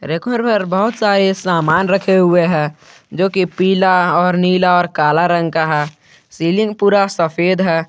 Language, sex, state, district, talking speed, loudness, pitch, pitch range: Hindi, male, Jharkhand, Garhwa, 150 wpm, -14 LUFS, 180 Hz, 165-195 Hz